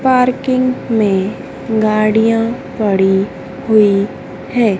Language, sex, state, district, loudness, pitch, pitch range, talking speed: Hindi, female, Madhya Pradesh, Dhar, -14 LUFS, 220 Hz, 200-245 Hz, 75 wpm